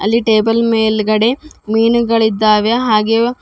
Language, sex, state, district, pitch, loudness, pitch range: Kannada, female, Karnataka, Bidar, 225 Hz, -13 LUFS, 215-230 Hz